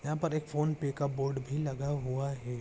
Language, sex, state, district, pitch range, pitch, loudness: Hindi, male, Jharkhand, Sahebganj, 135-150 Hz, 140 Hz, -34 LUFS